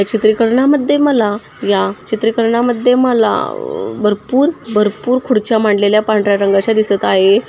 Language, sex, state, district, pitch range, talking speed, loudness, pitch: Marathi, female, Maharashtra, Sindhudurg, 210-250 Hz, 130 wpm, -13 LUFS, 225 Hz